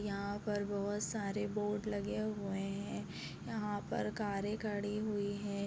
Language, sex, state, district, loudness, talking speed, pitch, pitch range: Hindi, female, Bihar, Begusarai, -39 LUFS, 150 wpm, 205 Hz, 200-210 Hz